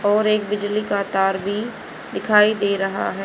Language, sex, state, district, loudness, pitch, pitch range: Hindi, female, Haryana, Rohtak, -20 LUFS, 205 Hz, 200-215 Hz